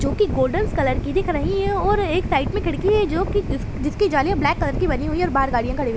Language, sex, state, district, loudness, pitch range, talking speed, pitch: Hindi, female, Chhattisgarh, Bilaspur, -21 LUFS, 290-405 Hz, 310 wpm, 380 Hz